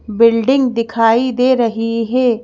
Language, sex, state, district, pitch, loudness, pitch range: Hindi, female, Madhya Pradesh, Bhopal, 230 Hz, -14 LUFS, 230-250 Hz